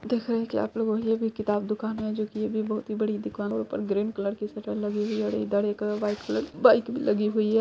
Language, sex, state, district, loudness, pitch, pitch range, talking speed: Hindi, female, Bihar, Saharsa, -27 LUFS, 215 Hz, 210-220 Hz, 315 wpm